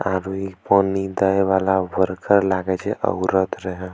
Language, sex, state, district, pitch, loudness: Angika, male, Bihar, Bhagalpur, 95 Hz, -20 LUFS